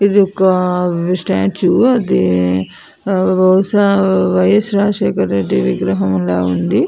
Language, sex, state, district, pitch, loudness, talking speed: Telugu, female, Andhra Pradesh, Anantapur, 180 Hz, -14 LUFS, 85 wpm